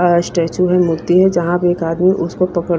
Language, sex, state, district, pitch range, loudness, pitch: Hindi, female, Punjab, Kapurthala, 170-180 Hz, -15 LUFS, 175 Hz